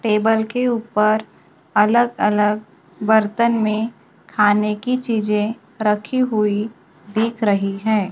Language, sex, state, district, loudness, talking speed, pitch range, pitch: Hindi, female, Maharashtra, Gondia, -19 LUFS, 110 wpm, 210-230 Hz, 215 Hz